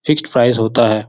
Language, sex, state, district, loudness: Hindi, male, Bihar, Jahanabad, -14 LUFS